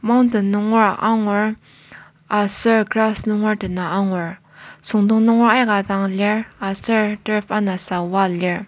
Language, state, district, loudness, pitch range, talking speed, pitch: Ao, Nagaland, Kohima, -18 LUFS, 190-220 Hz, 125 wpm, 210 Hz